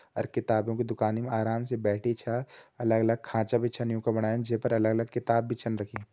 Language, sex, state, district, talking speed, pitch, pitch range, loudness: Hindi, male, Uttarakhand, Tehri Garhwal, 225 wpm, 115 Hz, 110-120 Hz, -29 LUFS